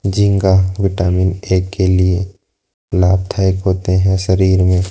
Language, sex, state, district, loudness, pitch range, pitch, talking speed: Hindi, male, Rajasthan, Jaipur, -15 LUFS, 90-95 Hz, 95 Hz, 120 wpm